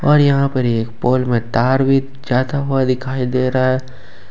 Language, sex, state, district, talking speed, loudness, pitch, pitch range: Hindi, male, Jharkhand, Ranchi, 195 wpm, -17 LUFS, 130 Hz, 125-135 Hz